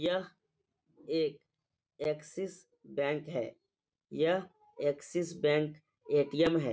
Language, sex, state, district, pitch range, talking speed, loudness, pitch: Hindi, male, Bihar, Supaul, 150-180 Hz, 100 wpm, -34 LUFS, 160 Hz